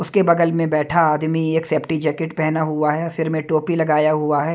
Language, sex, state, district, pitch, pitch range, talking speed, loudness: Hindi, male, Haryana, Jhajjar, 160 Hz, 155-165 Hz, 225 wpm, -19 LUFS